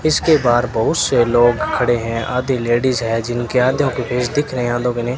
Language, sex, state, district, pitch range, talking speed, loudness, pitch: Hindi, male, Rajasthan, Bikaner, 120-130 Hz, 245 wpm, -17 LUFS, 120 Hz